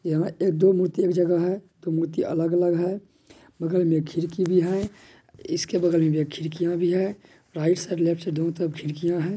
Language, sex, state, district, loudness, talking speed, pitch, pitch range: Maithili, male, Bihar, Madhepura, -24 LUFS, 205 wpm, 175 Hz, 165-185 Hz